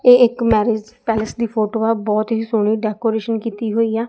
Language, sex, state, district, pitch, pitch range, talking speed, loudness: Punjabi, female, Punjab, Kapurthala, 225 Hz, 215-230 Hz, 205 wpm, -18 LUFS